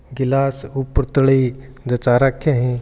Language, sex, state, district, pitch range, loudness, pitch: Marwari, male, Rajasthan, Churu, 125-135 Hz, -18 LUFS, 135 Hz